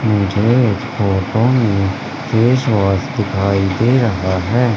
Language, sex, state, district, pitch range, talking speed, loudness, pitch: Hindi, male, Madhya Pradesh, Katni, 95-120 Hz, 125 wpm, -15 LUFS, 105 Hz